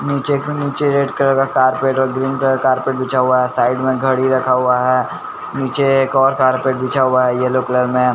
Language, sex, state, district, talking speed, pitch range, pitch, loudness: Hindi, male, Bihar, Patna, 230 wpm, 130-135 Hz, 130 Hz, -16 LUFS